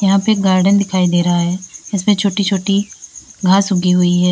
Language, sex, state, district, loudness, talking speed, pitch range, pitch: Hindi, female, Uttar Pradesh, Lalitpur, -15 LUFS, 195 wpm, 180-200 Hz, 190 Hz